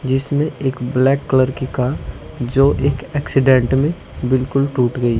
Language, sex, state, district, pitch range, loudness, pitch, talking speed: Hindi, male, Uttar Pradesh, Shamli, 125-140 Hz, -17 LUFS, 130 Hz, 160 wpm